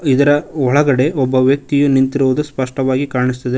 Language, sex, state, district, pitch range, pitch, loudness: Kannada, male, Karnataka, Koppal, 130-145 Hz, 135 Hz, -15 LUFS